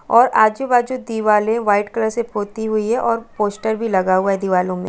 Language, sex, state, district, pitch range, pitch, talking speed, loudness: Hindi, female, Chhattisgarh, Balrampur, 205-230 Hz, 220 Hz, 210 wpm, -18 LUFS